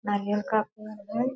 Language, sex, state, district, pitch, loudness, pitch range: Hindi, female, Bihar, Purnia, 215 Hz, -29 LUFS, 205-215 Hz